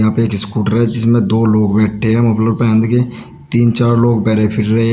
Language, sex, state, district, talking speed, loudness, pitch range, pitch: Hindi, male, Uttar Pradesh, Shamli, 245 wpm, -13 LUFS, 110-115 Hz, 115 Hz